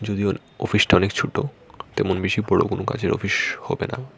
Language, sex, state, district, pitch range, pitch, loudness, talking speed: Bengali, male, Tripura, Unakoti, 100-135 Hz, 110 Hz, -22 LUFS, 170 wpm